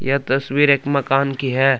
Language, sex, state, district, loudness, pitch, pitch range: Hindi, male, Jharkhand, Palamu, -18 LUFS, 135 Hz, 135-140 Hz